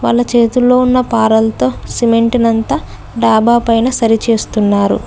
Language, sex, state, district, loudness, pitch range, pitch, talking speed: Telugu, female, Telangana, Mahabubabad, -12 LUFS, 205-240 Hz, 230 Hz, 120 wpm